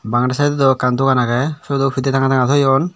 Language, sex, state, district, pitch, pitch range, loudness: Chakma, male, Tripura, Dhalai, 135 Hz, 125-140 Hz, -16 LUFS